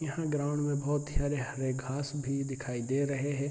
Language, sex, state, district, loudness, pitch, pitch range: Hindi, male, Bihar, Araria, -33 LUFS, 140 Hz, 135-145 Hz